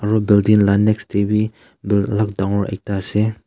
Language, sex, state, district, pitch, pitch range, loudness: Nagamese, male, Nagaland, Kohima, 105 Hz, 100-110 Hz, -18 LUFS